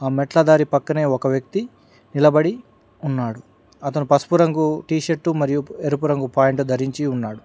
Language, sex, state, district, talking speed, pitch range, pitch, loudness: Telugu, male, Telangana, Mahabubabad, 145 wpm, 135-155 Hz, 145 Hz, -19 LUFS